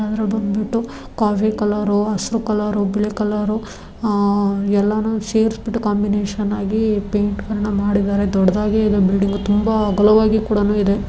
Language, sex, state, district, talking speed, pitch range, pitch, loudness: Kannada, female, Karnataka, Dharwad, 115 wpm, 205-215 Hz, 210 Hz, -18 LUFS